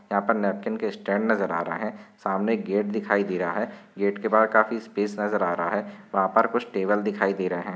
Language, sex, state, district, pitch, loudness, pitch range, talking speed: Hindi, male, Maharashtra, Chandrapur, 105 Hz, -25 LUFS, 100-110 Hz, 255 wpm